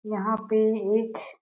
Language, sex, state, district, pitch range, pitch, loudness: Hindi, female, Chhattisgarh, Sarguja, 215-220 Hz, 220 Hz, -25 LUFS